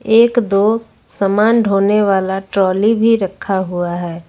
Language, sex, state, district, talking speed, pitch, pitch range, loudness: Hindi, female, Jharkhand, Ranchi, 140 wpm, 200 Hz, 190-225 Hz, -15 LUFS